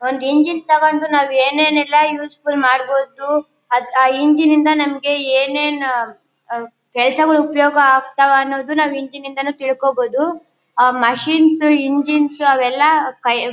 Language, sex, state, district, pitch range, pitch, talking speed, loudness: Kannada, female, Karnataka, Bellary, 265-300 Hz, 280 Hz, 140 wpm, -15 LUFS